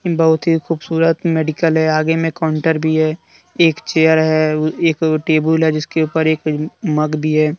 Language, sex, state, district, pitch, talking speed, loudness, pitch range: Hindi, male, Jharkhand, Deoghar, 160 Hz, 165 wpm, -16 LUFS, 155-165 Hz